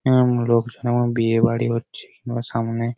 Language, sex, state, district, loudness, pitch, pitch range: Bengali, male, West Bengal, Jhargram, -21 LUFS, 120 Hz, 115-120 Hz